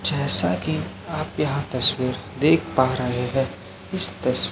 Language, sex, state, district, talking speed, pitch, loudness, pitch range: Hindi, male, Chhattisgarh, Raipur, 145 wpm, 130 Hz, -20 LUFS, 125-135 Hz